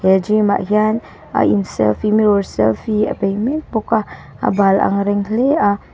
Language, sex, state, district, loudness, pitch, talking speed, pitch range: Mizo, female, Mizoram, Aizawl, -16 LUFS, 205 Hz, 190 wpm, 195-215 Hz